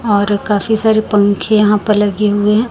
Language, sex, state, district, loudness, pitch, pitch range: Hindi, female, Chhattisgarh, Raipur, -13 LUFS, 210 Hz, 205-215 Hz